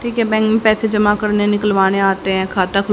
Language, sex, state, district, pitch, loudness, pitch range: Hindi, female, Haryana, Jhajjar, 205 Hz, -15 LUFS, 195-220 Hz